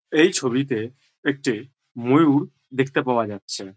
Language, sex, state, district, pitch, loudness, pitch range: Bengali, male, West Bengal, Jhargram, 130 Hz, -22 LUFS, 115-140 Hz